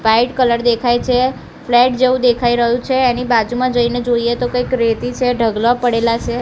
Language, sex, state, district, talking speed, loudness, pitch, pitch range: Gujarati, female, Gujarat, Gandhinagar, 185 wpm, -15 LUFS, 245 Hz, 235-250 Hz